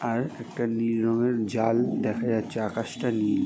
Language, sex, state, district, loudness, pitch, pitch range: Bengali, male, West Bengal, Jalpaiguri, -27 LUFS, 115 Hz, 115-120 Hz